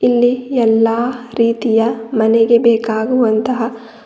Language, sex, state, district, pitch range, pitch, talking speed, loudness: Kannada, female, Karnataka, Bidar, 225-240 Hz, 230 Hz, 75 wpm, -14 LUFS